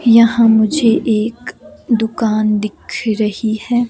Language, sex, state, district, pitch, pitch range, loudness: Hindi, female, Himachal Pradesh, Shimla, 225 Hz, 215-235 Hz, -15 LUFS